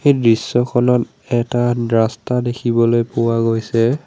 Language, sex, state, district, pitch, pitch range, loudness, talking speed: Assamese, male, Assam, Sonitpur, 120 Hz, 115-125 Hz, -17 LUFS, 105 wpm